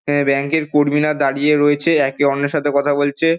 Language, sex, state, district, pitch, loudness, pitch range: Bengali, male, West Bengal, Dakshin Dinajpur, 145 Hz, -16 LUFS, 140-150 Hz